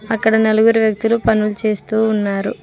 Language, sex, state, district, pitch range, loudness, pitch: Telugu, female, Telangana, Mahabubabad, 215-225 Hz, -16 LUFS, 220 Hz